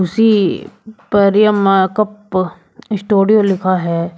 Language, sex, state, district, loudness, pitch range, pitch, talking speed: Hindi, male, Uttar Pradesh, Shamli, -14 LUFS, 185-215 Hz, 200 Hz, 85 wpm